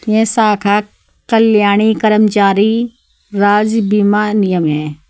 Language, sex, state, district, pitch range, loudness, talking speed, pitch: Hindi, female, Uttar Pradesh, Saharanpur, 205-220 Hz, -12 LUFS, 95 wpm, 210 Hz